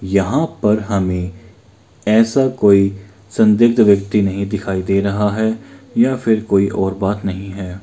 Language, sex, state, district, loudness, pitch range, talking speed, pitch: Maithili, male, Bihar, Kishanganj, -16 LUFS, 95-110 Hz, 145 wpm, 100 Hz